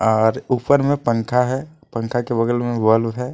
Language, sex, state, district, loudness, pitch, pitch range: Hindi, male, Jharkhand, Deoghar, -19 LUFS, 120 Hz, 115-130 Hz